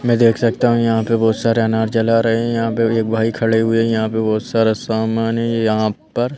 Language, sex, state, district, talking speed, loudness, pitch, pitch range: Hindi, male, Madhya Pradesh, Bhopal, 265 wpm, -17 LUFS, 115 Hz, 110-115 Hz